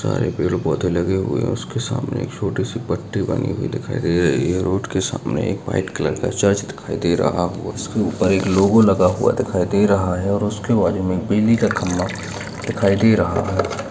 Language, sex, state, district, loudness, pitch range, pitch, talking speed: Hindi, male, Uttar Pradesh, Budaun, -19 LUFS, 90-115 Hz, 100 Hz, 210 wpm